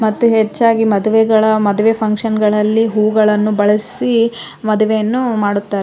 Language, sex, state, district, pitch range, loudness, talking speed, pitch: Kannada, female, Karnataka, Raichur, 210-225 Hz, -14 LUFS, 105 wpm, 215 Hz